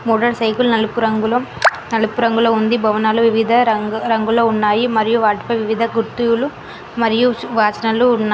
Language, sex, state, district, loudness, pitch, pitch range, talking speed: Telugu, female, Telangana, Mahabubabad, -16 LUFS, 225 Hz, 220-235 Hz, 145 wpm